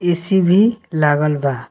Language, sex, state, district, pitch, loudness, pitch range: Bhojpuri, male, Bihar, Muzaffarpur, 170 Hz, -16 LUFS, 145-190 Hz